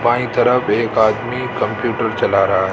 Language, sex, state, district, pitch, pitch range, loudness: Hindi, male, Rajasthan, Jaipur, 120 Hz, 110-125 Hz, -17 LUFS